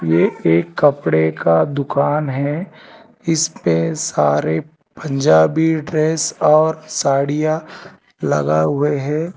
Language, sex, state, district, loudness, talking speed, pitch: Hindi, male, Telangana, Hyderabad, -17 LUFS, 100 wpm, 150 Hz